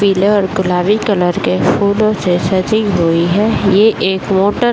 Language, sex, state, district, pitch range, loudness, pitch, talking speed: Hindi, female, Bihar, Bhagalpur, 185-210 Hz, -13 LUFS, 195 Hz, 180 wpm